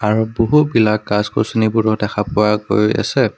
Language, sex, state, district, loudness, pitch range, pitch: Assamese, male, Assam, Kamrup Metropolitan, -16 LUFS, 105-110 Hz, 110 Hz